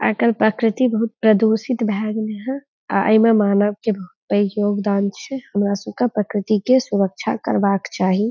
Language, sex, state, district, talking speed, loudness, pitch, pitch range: Maithili, female, Bihar, Saharsa, 165 wpm, -19 LUFS, 215 Hz, 200-225 Hz